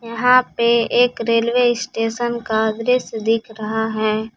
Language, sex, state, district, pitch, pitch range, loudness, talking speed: Hindi, female, Jharkhand, Palamu, 230 Hz, 220-240 Hz, -18 LUFS, 135 wpm